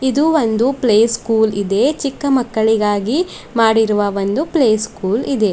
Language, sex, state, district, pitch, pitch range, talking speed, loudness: Kannada, female, Karnataka, Bidar, 225 Hz, 215-270 Hz, 130 wpm, -16 LUFS